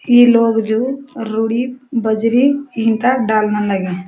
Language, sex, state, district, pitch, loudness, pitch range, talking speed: Garhwali, female, Uttarakhand, Uttarkashi, 230 Hz, -15 LUFS, 220-255 Hz, 120 wpm